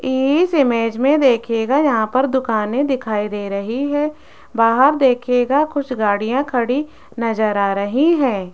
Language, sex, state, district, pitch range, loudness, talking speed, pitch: Hindi, female, Rajasthan, Jaipur, 225-275 Hz, -17 LUFS, 140 wpm, 250 Hz